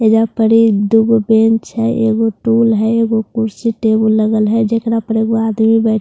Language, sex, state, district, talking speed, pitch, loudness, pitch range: Hindi, female, Bihar, Katihar, 190 wpm, 225 Hz, -13 LUFS, 220-225 Hz